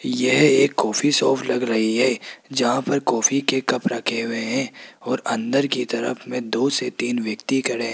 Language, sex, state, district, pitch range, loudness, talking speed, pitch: Hindi, male, Rajasthan, Jaipur, 115-135 Hz, -21 LUFS, 195 wpm, 125 Hz